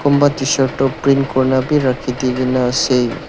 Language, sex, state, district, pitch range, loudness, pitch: Nagamese, male, Nagaland, Dimapur, 130-140 Hz, -16 LUFS, 130 Hz